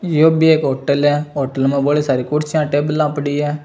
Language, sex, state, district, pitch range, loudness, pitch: Marwari, male, Rajasthan, Churu, 140-150 Hz, -16 LUFS, 145 Hz